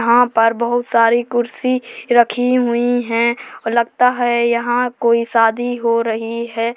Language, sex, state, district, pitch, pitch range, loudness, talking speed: Hindi, female, Uttar Pradesh, Hamirpur, 235 Hz, 230-245 Hz, -16 LUFS, 140 wpm